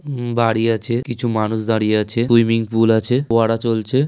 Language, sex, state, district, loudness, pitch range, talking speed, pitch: Bengali, male, West Bengal, Paschim Medinipur, -18 LUFS, 110-120 Hz, 175 wpm, 115 Hz